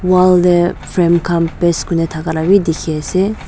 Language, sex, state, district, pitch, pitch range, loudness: Nagamese, female, Nagaland, Dimapur, 170 Hz, 165-185 Hz, -14 LUFS